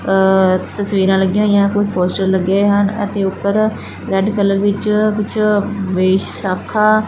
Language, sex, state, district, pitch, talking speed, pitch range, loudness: Punjabi, female, Punjab, Fazilka, 200 Hz, 145 wpm, 190-210 Hz, -15 LUFS